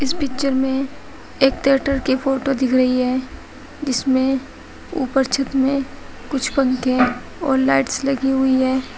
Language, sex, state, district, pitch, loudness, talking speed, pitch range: Hindi, female, Uttar Pradesh, Shamli, 265 Hz, -19 LUFS, 140 wpm, 260-275 Hz